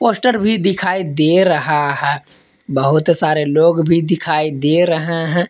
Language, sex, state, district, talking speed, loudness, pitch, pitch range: Hindi, male, Jharkhand, Palamu, 155 wpm, -15 LUFS, 165 Hz, 150-180 Hz